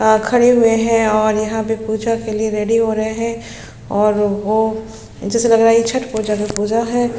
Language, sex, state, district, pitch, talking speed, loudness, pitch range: Hindi, female, Chhattisgarh, Sukma, 220 Hz, 225 wpm, -16 LUFS, 215-230 Hz